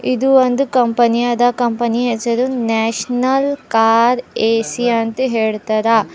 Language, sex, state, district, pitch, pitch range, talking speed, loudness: Kannada, female, Karnataka, Bidar, 240 Hz, 225-250 Hz, 105 wpm, -15 LUFS